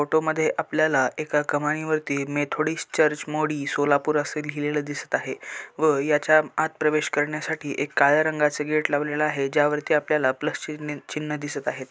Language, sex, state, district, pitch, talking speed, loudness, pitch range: Marathi, male, Maharashtra, Solapur, 150 Hz, 160 wpm, -24 LUFS, 145-155 Hz